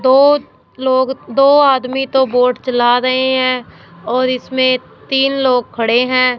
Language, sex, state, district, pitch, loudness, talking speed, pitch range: Hindi, female, Punjab, Fazilka, 255 Hz, -14 LUFS, 140 wpm, 250-265 Hz